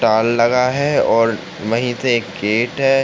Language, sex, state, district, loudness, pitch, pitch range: Hindi, male, Uttar Pradesh, Ghazipur, -17 LUFS, 120 Hz, 115-125 Hz